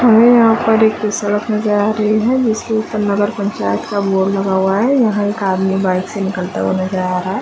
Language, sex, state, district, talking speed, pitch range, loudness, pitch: Hindi, female, Chhattisgarh, Raigarh, 225 wpm, 190-220 Hz, -15 LUFS, 205 Hz